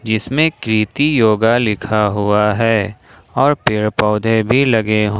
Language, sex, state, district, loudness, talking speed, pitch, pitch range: Hindi, male, Jharkhand, Ranchi, -15 LUFS, 140 wpm, 110 Hz, 105-120 Hz